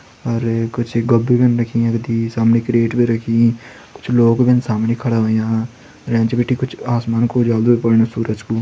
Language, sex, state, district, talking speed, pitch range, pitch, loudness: Hindi, male, Uttarakhand, Uttarkashi, 190 wpm, 115-120 Hz, 115 Hz, -16 LUFS